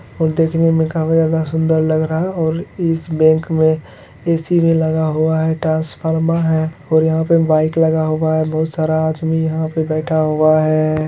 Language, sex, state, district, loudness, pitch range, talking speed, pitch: Hindi, male, Bihar, Lakhisarai, -16 LUFS, 155-160 Hz, 190 wpm, 160 Hz